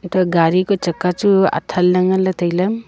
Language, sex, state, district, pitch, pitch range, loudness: Wancho, female, Arunachal Pradesh, Longding, 185 Hz, 180-190 Hz, -16 LUFS